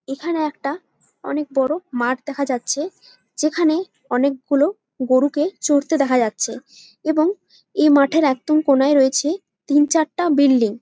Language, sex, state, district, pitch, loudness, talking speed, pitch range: Bengali, female, West Bengal, Jalpaiguri, 285 Hz, -19 LUFS, 135 wpm, 265-310 Hz